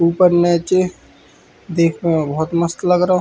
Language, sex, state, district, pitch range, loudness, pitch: Hindi, male, Uttar Pradesh, Hamirpur, 170-180 Hz, -16 LUFS, 175 Hz